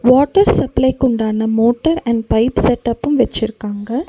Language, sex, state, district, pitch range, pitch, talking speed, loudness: Tamil, female, Tamil Nadu, Nilgiris, 225-260 Hz, 240 Hz, 105 wpm, -15 LUFS